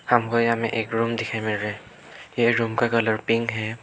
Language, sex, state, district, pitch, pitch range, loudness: Hindi, male, Arunachal Pradesh, Lower Dibang Valley, 115 Hz, 110-115 Hz, -23 LUFS